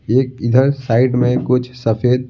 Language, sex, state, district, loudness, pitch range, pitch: Hindi, male, Bihar, Patna, -16 LUFS, 125-130 Hz, 125 Hz